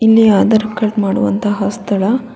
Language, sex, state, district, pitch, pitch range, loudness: Kannada, female, Karnataka, Bangalore, 210 Hz, 200-225 Hz, -14 LUFS